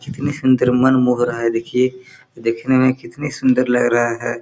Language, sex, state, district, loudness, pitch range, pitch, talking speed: Hindi, male, Chhattisgarh, Korba, -17 LUFS, 120-130 Hz, 125 Hz, 190 wpm